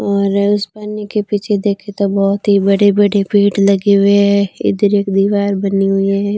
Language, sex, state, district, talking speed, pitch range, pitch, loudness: Hindi, female, Rajasthan, Barmer, 190 wpm, 200-205 Hz, 200 Hz, -14 LUFS